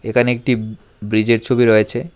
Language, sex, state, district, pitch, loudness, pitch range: Bengali, male, Tripura, West Tripura, 115 Hz, -16 LUFS, 110-120 Hz